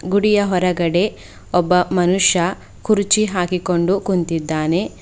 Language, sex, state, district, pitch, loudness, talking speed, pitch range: Kannada, female, Karnataka, Bidar, 180 Hz, -17 LUFS, 85 wpm, 175-195 Hz